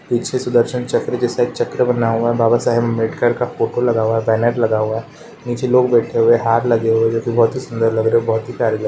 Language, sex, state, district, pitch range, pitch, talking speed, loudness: Hindi, male, Uttar Pradesh, Ghazipur, 115-120 Hz, 120 Hz, 290 wpm, -17 LUFS